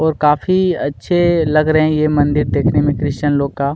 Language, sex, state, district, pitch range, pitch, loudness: Hindi, male, Chhattisgarh, Kabirdham, 145-160 Hz, 150 Hz, -15 LUFS